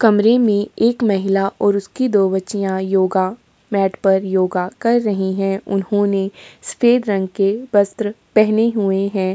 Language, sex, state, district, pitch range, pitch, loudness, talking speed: Hindi, female, Uttar Pradesh, Jyotiba Phule Nagar, 195-215 Hz, 200 Hz, -17 LUFS, 150 wpm